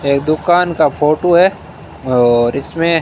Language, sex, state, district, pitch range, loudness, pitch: Hindi, male, Rajasthan, Bikaner, 140-175 Hz, -13 LUFS, 155 Hz